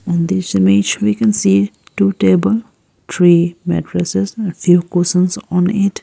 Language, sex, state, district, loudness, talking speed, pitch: English, female, Arunachal Pradesh, Lower Dibang Valley, -15 LUFS, 150 wpm, 175 Hz